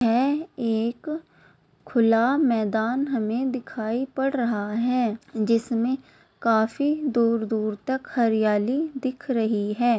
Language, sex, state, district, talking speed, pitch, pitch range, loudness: Hindi, female, Bihar, Begusarai, 100 wpm, 235 Hz, 225-265 Hz, -24 LUFS